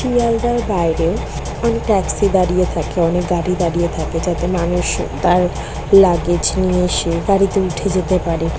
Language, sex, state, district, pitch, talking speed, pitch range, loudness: Bengali, female, West Bengal, North 24 Parganas, 180 Hz, 140 wpm, 170-195 Hz, -17 LUFS